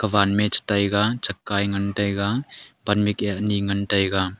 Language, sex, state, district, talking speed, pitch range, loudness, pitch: Wancho, male, Arunachal Pradesh, Longding, 190 wpm, 100-105 Hz, -21 LUFS, 100 Hz